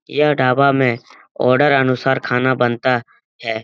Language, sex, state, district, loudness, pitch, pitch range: Hindi, male, Bihar, Lakhisarai, -16 LUFS, 130 Hz, 125-135 Hz